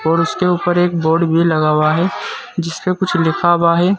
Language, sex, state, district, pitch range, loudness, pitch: Hindi, male, Uttar Pradesh, Saharanpur, 165-180 Hz, -15 LUFS, 170 Hz